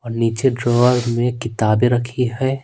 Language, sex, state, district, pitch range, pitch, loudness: Hindi, male, Bihar, Patna, 115-125 Hz, 120 Hz, -18 LUFS